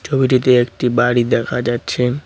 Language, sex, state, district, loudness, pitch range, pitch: Bengali, male, West Bengal, Cooch Behar, -16 LUFS, 120-130 Hz, 125 Hz